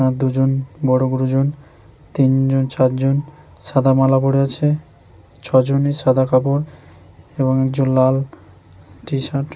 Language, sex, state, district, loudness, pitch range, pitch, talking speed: Bengali, male, West Bengal, Jhargram, -17 LUFS, 130-135 Hz, 135 Hz, 115 wpm